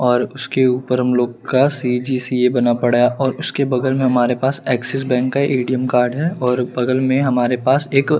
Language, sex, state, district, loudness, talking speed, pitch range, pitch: Hindi, male, Chandigarh, Chandigarh, -17 LUFS, 200 wpm, 125-135 Hz, 130 Hz